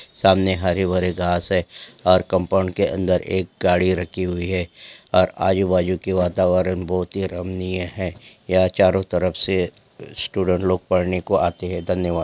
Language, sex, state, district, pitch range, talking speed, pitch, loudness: Angika, male, Bihar, Madhepura, 90-95 Hz, 155 wpm, 90 Hz, -21 LUFS